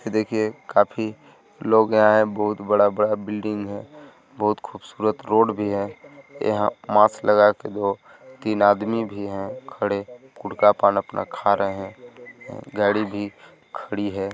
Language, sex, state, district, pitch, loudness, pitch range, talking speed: Hindi, male, Chhattisgarh, Sarguja, 105 Hz, -22 LUFS, 100-110 Hz, 140 wpm